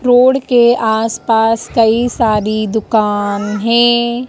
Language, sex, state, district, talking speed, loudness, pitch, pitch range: Hindi, female, Madhya Pradesh, Dhar, 110 wpm, -13 LUFS, 225 Hz, 215-240 Hz